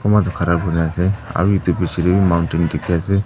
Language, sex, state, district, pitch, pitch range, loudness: Nagamese, female, Nagaland, Dimapur, 90 Hz, 85-100 Hz, -18 LUFS